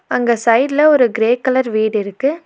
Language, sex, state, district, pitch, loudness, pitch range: Tamil, female, Tamil Nadu, Nilgiris, 245 Hz, -14 LUFS, 225-270 Hz